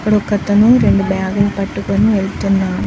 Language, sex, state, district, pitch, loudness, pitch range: Telugu, female, Andhra Pradesh, Chittoor, 200 Hz, -14 LUFS, 195-205 Hz